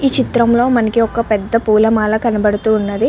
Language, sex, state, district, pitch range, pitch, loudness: Telugu, male, Andhra Pradesh, Guntur, 215-235 Hz, 225 Hz, -14 LUFS